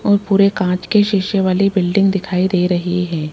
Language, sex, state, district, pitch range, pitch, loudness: Hindi, female, Rajasthan, Jaipur, 180-200 Hz, 190 Hz, -16 LUFS